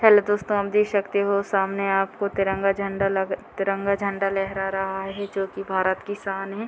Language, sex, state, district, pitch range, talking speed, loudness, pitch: Hindi, female, Bihar, Muzaffarpur, 195-200 Hz, 195 wpm, -24 LUFS, 195 Hz